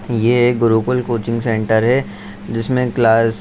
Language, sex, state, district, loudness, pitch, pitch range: Hindi, male, Bihar, Saharsa, -16 LUFS, 115 Hz, 110-120 Hz